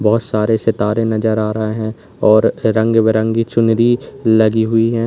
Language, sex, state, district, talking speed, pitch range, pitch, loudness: Hindi, male, Uttar Pradesh, Lalitpur, 165 wpm, 110-115 Hz, 110 Hz, -15 LUFS